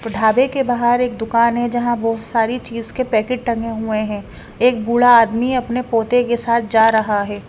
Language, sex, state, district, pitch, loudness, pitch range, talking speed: Hindi, female, Haryana, Rohtak, 235 Hz, -17 LUFS, 225-245 Hz, 200 wpm